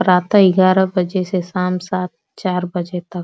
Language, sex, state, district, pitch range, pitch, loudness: Bhojpuri, female, Uttar Pradesh, Deoria, 180-185 Hz, 180 Hz, -17 LUFS